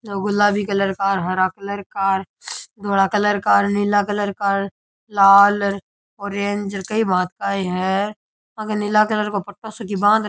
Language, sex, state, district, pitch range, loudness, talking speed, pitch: Rajasthani, male, Rajasthan, Churu, 195-205 Hz, -19 LUFS, 165 wpm, 200 Hz